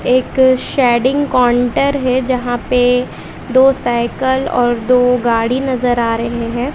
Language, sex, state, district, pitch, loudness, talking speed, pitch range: Hindi, female, Bihar, West Champaran, 250 Hz, -14 LUFS, 135 wpm, 240-260 Hz